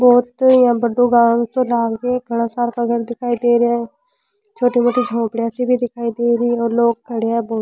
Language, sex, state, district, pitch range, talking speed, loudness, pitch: Rajasthani, female, Rajasthan, Churu, 235-245 Hz, 230 wpm, -17 LUFS, 240 Hz